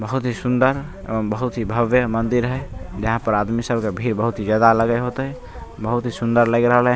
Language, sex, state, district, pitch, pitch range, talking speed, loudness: Maithili, male, Bihar, Begusarai, 115 Hz, 110-125 Hz, 215 wpm, -20 LUFS